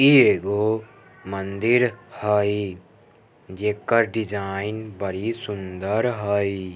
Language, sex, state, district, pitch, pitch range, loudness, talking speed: Maithili, male, Bihar, Samastipur, 105 Hz, 100-110 Hz, -23 LUFS, 80 wpm